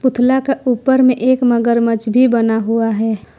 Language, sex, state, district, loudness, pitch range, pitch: Hindi, female, Jharkhand, Ranchi, -14 LUFS, 225-255 Hz, 240 Hz